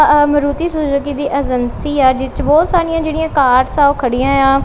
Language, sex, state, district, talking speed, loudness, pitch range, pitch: Punjabi, female, Punjab, Kapurthala, 205 wpm, -14 LUFS, 270-310 Hz, 285 Hz